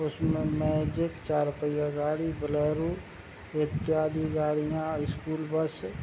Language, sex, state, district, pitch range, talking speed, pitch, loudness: Hindi, male, Bihar, Begusarai, 150-155 Hz, 110 wpm, 155 Hz, -30 LUFS